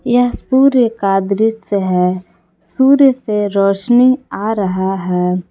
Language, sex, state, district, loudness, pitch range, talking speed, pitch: Hindi, female, Jharkhand, Palamu, -14 LUFS, 185-245 Hz, 120 wpm, 200 Hz